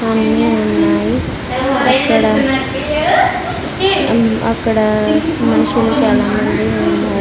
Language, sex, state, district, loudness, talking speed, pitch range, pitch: Telugu, female, Andhra Pradesh, Sri Satya Sai, -14 LUFS, 85 wpm, 215-285 Hz, 230 Hz